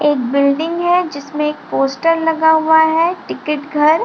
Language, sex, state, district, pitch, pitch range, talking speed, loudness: Hindi, female, Bihar, Lakhisarai, 315 Hz, 295-325 Hz, 180 wpm, -15 LUFS